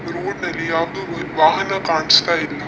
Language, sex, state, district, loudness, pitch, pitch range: Kannada, male, Karnataka, Dakshina Kannada, -18 LUFS, 165 Hz, 160-170 Hz